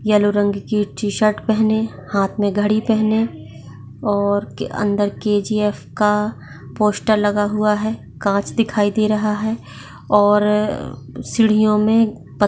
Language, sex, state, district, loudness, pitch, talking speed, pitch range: Hindi, female, Maharashtra, Chandrapur, -18 LUFS, 210 Hz, 125 wpm, 205-215 Hz